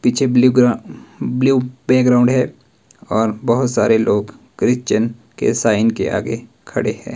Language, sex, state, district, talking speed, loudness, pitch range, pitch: Hindi, male, Himachal Pradesh, Shimla, 145 wpm, -17 LUFS, 115-125 Hz, 120 Hz